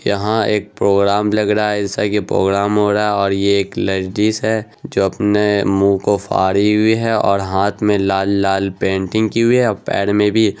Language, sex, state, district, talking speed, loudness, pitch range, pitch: Hindi, male, Bihar, Araria, 205 wpm, -16 LUFS, 100-105 Hz, 105 Hz